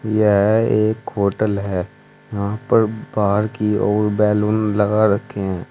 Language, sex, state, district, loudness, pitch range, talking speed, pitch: Hindi, male, Uttar Pradesh, Saharanpur, -18 LUFS, 100-110 Hz, 135 wpm, 105 Hz